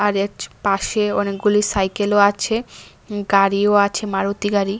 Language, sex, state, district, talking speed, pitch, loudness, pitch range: Bengali, female, Tripura, West Tripura, 100 wpm, 205 Hz, -18 LUFS, 200-210 Hz